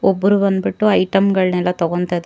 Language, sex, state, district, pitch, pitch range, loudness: Kannada, female, Karnataka, Bangalore, 190 Hz, 180-195 Hz, -16 LUFS